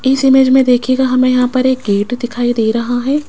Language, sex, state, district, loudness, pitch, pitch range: Hindi, female, Rajasthan, Jaipur, -13 LUFS, 255 Hz, 240-265 Hz